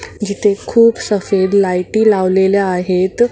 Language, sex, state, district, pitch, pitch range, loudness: Marathi, female, Maharashtra, Mumbai Suburban, 200 Hz, 190-210 Hz, -14 LUFS